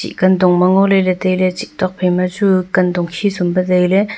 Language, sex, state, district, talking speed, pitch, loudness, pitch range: Wancho, female, Arunachal Pradesh, Longding, 230 wpm, 185 Hz, -15 LUFS, 180-190 Hz